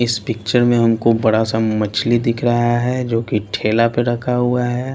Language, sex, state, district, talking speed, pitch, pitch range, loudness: Hindi, male, Bihar, Patna, 205 wpm, 120 Hz, 110-120 Hz, -17 LUFS